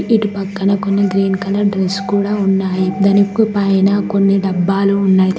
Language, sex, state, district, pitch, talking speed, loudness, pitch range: Telugu, female, Telangana, Mahabubabad, 195 Hz, 145 wpm, -15 LUFS, 195-200 Hz